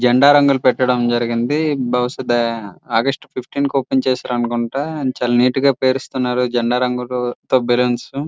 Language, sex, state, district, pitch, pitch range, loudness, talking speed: Telugu, male, Andhra Pradesh, Srikakulam, 125 Hz, 120-135 Hz, -17 LUFS, 145 wpm